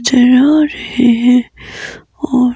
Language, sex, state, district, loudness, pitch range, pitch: Hindi, female, Himachal Pradesh, Shimla, -11 LUFS, 245-285 Hz, 250 Hz